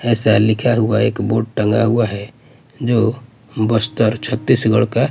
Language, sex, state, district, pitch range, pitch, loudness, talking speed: Hindi, male, Bihar, Patna, 110-120 Hz, 115 Hz, -16 LUFS, 140 wpm